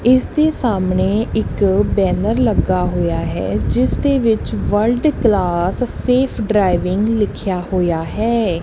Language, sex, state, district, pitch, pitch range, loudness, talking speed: Punjabi, female, Punjab, Kapurthala, 205 Hz, 175-240 Hz, -17 LUFS, 125 wpm